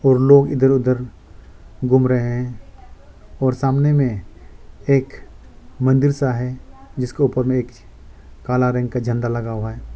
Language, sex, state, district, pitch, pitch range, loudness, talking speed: Hindi, male, Arunachal Pradesh, Lower Dibang Valley, 125 Hz, 105-130 Hz, -18 LUFS, 150 wpm